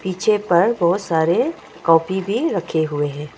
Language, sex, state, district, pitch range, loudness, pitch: Hindi, female, Arunachal Pradesh, Longding, 160-190 Hz, -19 LUFS, 170 Hz